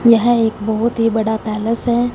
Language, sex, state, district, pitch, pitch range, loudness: Hindi, female, Punjab, Fazilka, 225 Hz, 220-235 Hz, -16 LUFS